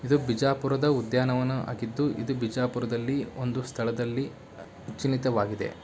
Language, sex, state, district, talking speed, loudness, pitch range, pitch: Kannada, male, Karnataka, Bijapur, 90 wpm, -28 LUFS, 115-135 Hz, 125 Hz